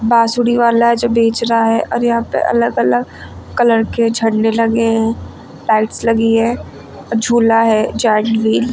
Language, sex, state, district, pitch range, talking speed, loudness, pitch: Hindi, female, Uttar Pradesh, Lucknow, 225-235 Hz, 160 wpm, -14 LUFS, 230 Hz